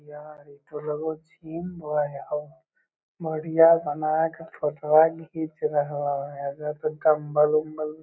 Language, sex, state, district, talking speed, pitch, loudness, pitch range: Magahi, male, Bihar, Lakhisarai, 140 wpm, 155 Hz, -25 LUFS, 150-160 Hz